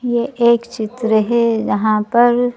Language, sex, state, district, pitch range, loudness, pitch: Hindi, female, Madhya Pradesh, Bhopal, 220-240 Hz, -16 LUFS, 235 Hz